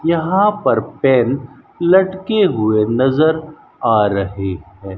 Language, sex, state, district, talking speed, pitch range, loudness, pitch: Hindi, male, Rajasthan, Bikaner, 110 wpm, 105-175 Hz, -16 LUFS, 135 Hz